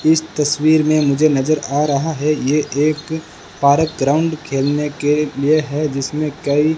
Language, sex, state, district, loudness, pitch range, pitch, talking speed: Hindi, male, Rajasthan, Bikaner, -17 LUFS, 145-155 Hz, 150 Hz, 170 wpm